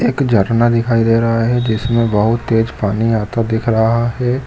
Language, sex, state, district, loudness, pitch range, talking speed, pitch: Hindi, male, Jharkhand, Jamtara, -15 LUFS, 110-120 Hz, 190 wpm, 115 Hz